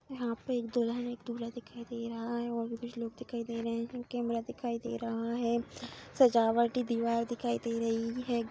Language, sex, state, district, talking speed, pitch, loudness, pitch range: Hindi, female, Bihar, Saharsa, 205 wpm, 235 Hz, -34 LUFS, 230-240 Hz